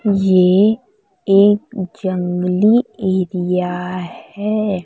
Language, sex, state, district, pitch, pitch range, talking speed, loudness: Hindi, female, Chhattisgarh, Raipur, 195 Hz, 180-215 Hz, 60 wpm, -16 LUFS